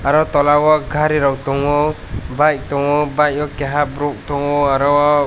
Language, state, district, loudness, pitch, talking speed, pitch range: Kokborok, Tripura, West Tripura, -16 LUFS, 145 Hz, 170 wpm, 140-150 Hz